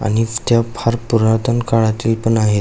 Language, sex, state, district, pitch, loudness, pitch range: Marathi, male, Maharashtra, Aurangabad, 115 Hz, -16 LUFS, 110-115 Hz